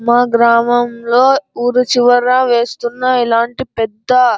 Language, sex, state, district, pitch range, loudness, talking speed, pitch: Telugu, male, Andhra Pradesh, Anantapur, 235-250 Hz, -13 LUFS, 110 wpm, 240 Hz